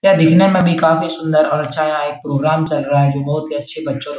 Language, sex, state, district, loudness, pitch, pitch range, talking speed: Hindi, male, Bihar, Jahanabad, -15 LUFS, 155 Hz, 145-160 Hz, 315 wpm